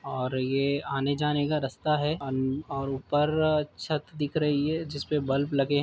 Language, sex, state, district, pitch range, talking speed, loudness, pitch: Hindi, male, Uttar Pradesh, Jyotiba Phule Nagar, 135-150 Hz, 185 wpm, -28 LUFS, 145 Hz